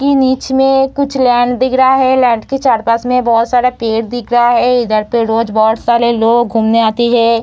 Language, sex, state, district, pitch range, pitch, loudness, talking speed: Hindi, female, Bihar, Samastipur, 230-260 Hz, 240 Hz, -12 LUFS, 210 wpm